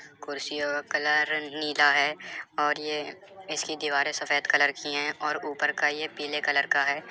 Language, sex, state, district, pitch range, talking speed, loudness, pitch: Hindi, male, Uttar Pradesh, Jyotiba Phule Nagar, 145-150 Hz, 175 wpm, -26 LUFS, 150 Hz